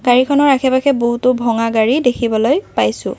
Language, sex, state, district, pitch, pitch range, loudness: Assamese, female, Assam, Kamrup Metropolitan, 250 Hz, 235-270 Hz, -14 LUFS